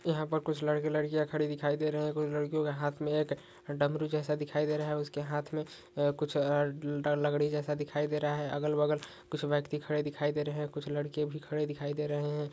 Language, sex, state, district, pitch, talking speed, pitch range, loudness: Hindi, male, West Bengal, Paschim Medinipur, 150 Hz, 245 wpm, 145-150 Hz, -33 LUFS